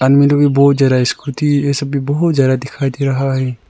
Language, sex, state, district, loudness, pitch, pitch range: Hindi, male, Arunachal Pradesh, Lower Dibang Valley, -14 LUFS, 140 Hz, 130-140 Hz